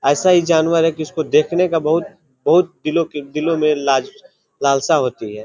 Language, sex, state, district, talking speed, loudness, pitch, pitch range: Hindi, male, Bihar, Vaishali, 200 wpm, -17 LUFS, 160 Hz, 140-170 Hz